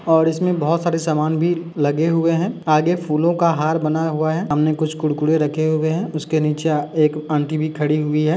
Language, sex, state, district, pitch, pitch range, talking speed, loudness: Hindi, male, Uttar Pradesh, Hamirpur, 155 Hz, 155-165 Hz, 215 wpm, -19 LUFS